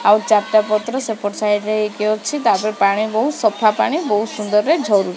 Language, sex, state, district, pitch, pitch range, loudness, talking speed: Odia, female, Odisha, Khordha, 215 Hz, 210-220 Hz, -17 LUFS, 195 wpm